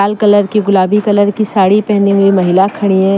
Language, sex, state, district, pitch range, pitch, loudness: Hindi, female, Jharkhand, Deoghar, 195-210 Hz, 200 Hz, -11 LUFS